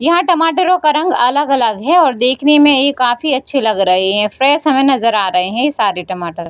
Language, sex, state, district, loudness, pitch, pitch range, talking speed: Hindi, female, Bihar, Bhagalpur, -13 LUFS, 270 Hz, 210-295 Hz, 210 wpm